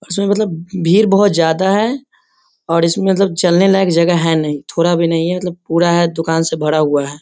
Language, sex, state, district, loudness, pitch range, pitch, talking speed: Hindi, male, Bihar, Sitamarhi, -14 LUFS, 165-195 Hz, 175 Hz, 225 wpm